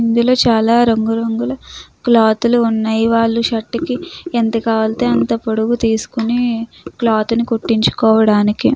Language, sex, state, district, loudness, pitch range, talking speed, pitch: Telugu, female, Andhra Pradesh, Krishna, -15 LUFS, 220-235 Hz, 110 wpm, 230 Hz